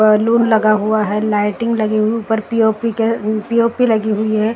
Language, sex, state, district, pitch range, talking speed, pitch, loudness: Hindi, female, Maharashtra, Gondia, 215-230 Hz, 235 wpm, 220 Hz, -15 LUFS